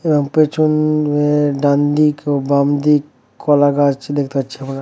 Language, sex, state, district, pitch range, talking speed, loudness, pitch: Bengali, male, West Bengal, Dakshin Dinajpur, 140-150 Hz, 125 wpm, -15 LUFS, 145 Hz